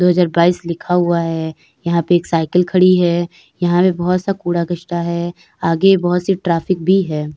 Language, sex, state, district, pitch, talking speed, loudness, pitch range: Hindi, female, Uttar Pradesh, Jyotiba Phule Nagar, 175 Hz, 205 wpm, -16 LUFS, 170-180 Hz